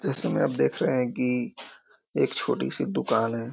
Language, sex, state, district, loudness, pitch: Hindi, male, Bihar, Muzaffarpur, -27 LUFS, 115 Hz